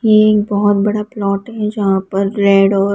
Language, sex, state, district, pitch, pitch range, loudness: Hindi, female, Rajasthan, Jaipur, 205 Hz, 195-210 Hz, -14 LUFS